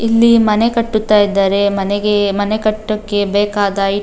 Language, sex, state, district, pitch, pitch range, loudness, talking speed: Kannada, female, Karnataka, Dakshina Kannada, 205 Hz, 200-215 Hz, -14 LUFS, 135 wpm